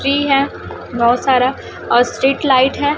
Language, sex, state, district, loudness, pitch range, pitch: Hindi, female, Chhattisgarh, Raipur, -15 LUFS, 250-275 Hz, 265 Hz